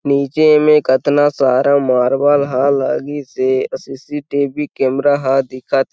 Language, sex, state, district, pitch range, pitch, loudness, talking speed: Chhattisgarhi, male, Chhattisgarh, Sarguja, 135-145 Hz, 140 Hz, -15 LUFS, 160 wpm